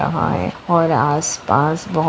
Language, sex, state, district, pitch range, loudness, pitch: Hindi, female, Maharashtra, Chandrapur, 145-165 Hz, -17 LUFS, 155 Hz